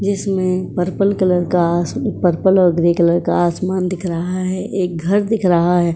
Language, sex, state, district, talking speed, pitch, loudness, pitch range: Hindi, female, Uttar Pradesh, Etah, 200 wpm, 180 Hz, -17 LUFS, 175-190 Hz